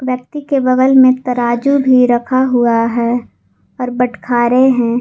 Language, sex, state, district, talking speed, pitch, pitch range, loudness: Hindi, female, Jharkhand, Garhwa, 155 wpm, 250 Hz, 240-260 Hz, -13 LUFS